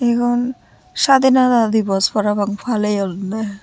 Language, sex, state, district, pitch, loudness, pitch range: Chakma, female, Tripura, Unakoti, 220 Hz, -17 LUFS, 205-245 Hz